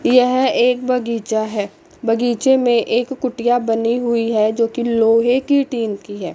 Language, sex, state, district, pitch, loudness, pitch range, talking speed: Hindi, female, Chandigarh, Chandigarh, 235 Hz, -17 LUFS, 225-250 Hz, 160 wpm